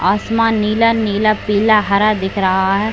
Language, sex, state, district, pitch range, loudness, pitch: Hindi, female, Chhattisgarh, Bilaspur, 200-220 Hz, -15 LUFS, 210 Hz